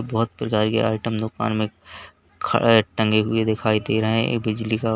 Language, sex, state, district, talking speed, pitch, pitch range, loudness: Hindi, male, Uttar Pradesh, Lalitpur, 180 wpm, 110 Hz, 110-115 Hz, -21 LUFS